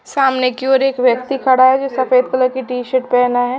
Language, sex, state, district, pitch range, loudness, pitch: Hindi, female, Chhattisgarh, Raipur, 250-265 Hz, -15 LUFS, 255 Hz